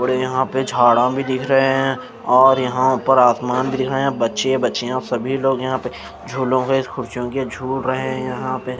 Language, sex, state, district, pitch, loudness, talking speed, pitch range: Hindi, male, Maharashtra, Mumbai Suburban, 130 Hz, -18 LUFS, 220 wpm, 125-130 Hz